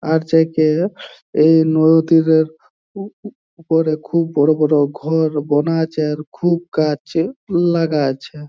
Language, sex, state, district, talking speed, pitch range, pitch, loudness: Bengali, male, West Bengal, Jhargram, 105 wpm, 155-165 Hz, 160 Hz, -16 LUFS